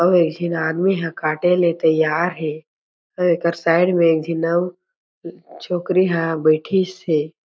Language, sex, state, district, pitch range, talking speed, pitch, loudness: Chhattisgarhi, male, Chhattisgarh, Jashpur, 160-180 Hz, 160 wpm, 170 Hz, -19 LUFS